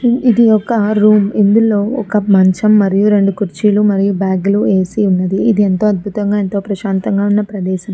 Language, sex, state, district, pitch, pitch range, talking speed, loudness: Telugu, female, Andhra Pradesh, Chittoor, 205 Hz, 195-215 Hz, 150 wpm, -13 LUFS